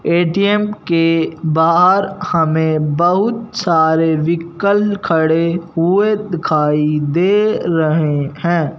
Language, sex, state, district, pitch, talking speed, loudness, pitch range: Hindi, male, Punjab, Fazilka, 170 Hz, 90 wpm, -15 LUFS, 160-195 Hz